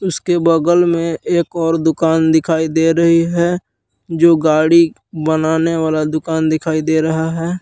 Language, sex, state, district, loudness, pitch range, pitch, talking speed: Hindi, male, Jharkhand, Palamu, -15 LUFS, 160-170 Hz, 160 Hz, 150 wpm